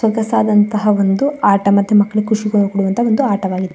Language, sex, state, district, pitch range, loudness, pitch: Kannada, female, Karnataka, Shimoga, 200-220 Hz, -14 LUFS, 210 Hz